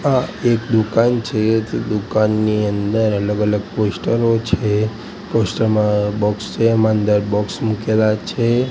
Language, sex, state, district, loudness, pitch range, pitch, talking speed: Gujarati, male, Gujarat, Gandhinagar, -18 LUFS, 105-115 Hz, 110 Hz, 140 wpm